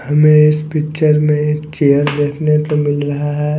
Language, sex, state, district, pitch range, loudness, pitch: Hindi, male, Chhattisgarh, Raipur, 145-150 Hz, -14 LUFS, 150 Hz